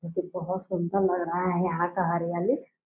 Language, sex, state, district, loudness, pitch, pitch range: Hindi, female, Bihar, Purnia, -28 LUFS, 180 Hz, 175-185 Hz